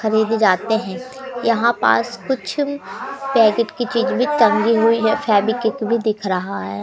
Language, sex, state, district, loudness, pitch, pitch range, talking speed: Hindi, female, Madhya Pradesh, Umaria, -18 LUFS, 225 Hz, 215-250 Hz, 160 wpm